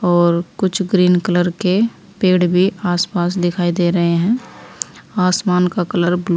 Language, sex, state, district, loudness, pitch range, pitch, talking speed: Hindi, female, Uttar Pradesh, Saharanpur, -17 LUFS, 175-190 Hz, 180 Hz, 160 wpm